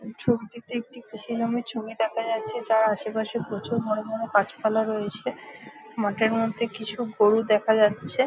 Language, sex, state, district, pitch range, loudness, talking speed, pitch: Bengali, female, West Bengal, Jalpaiguri, 215-230 Hz, -25 LUFS, 150 wpm, 220 Hz